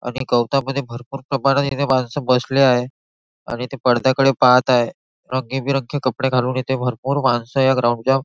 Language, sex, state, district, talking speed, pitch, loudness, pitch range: Marathi, male, Maharashtra, Nagpur, 165 wpm, 130 Hz, -18 LUFS, 125-135 Hz